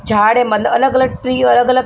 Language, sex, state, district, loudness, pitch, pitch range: Hindi, female, Maharashtra, Mumbai Suburban, -13 LUFS, 250 Hz, 220-255 Hz